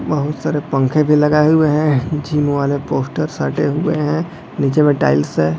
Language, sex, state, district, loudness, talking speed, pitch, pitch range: Hindi, male, Chhattisgarh, Bilaspur, -16 LUFS, 195 wpm, 150 Hz, 140-155 Hz